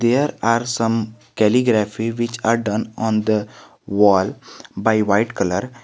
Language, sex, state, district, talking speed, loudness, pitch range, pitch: English, male, Jharkhand, Garhwa, 135 wpm, -19 LUFS, 105-115 Hz, 110 Hz